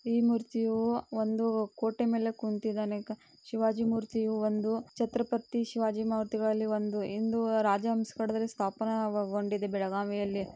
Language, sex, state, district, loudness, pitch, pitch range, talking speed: Kannada, female, Karnataka, Belgaum, -31 LUFS, 220 Hz, 210-225 Hz, 100 wpm